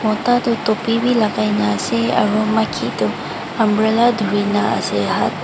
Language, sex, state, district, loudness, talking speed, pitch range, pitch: Nagamese, female, Mizoram, Aizawl, -17 LUFS, 175 wpm, 210-230 Hz, 220 Hz